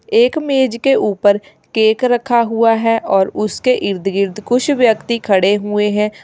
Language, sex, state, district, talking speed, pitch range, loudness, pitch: Hindi, female, Uttar Pradesh, Lalitpur, 165 wpm, 205-245 Hz, -15 LUFS, 220 Hz